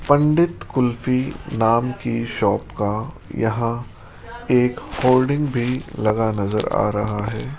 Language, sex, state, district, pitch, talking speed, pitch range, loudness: Hindi, male, Rajasthan, Jaipur, 120 Hz, 120 wpm, 110-130 Hz, -21 LUFS